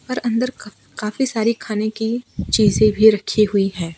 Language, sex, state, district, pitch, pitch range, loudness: Hindi, female, Gujarat, Valsad, 215 Hz, 210-230 Hz, -18 LUFS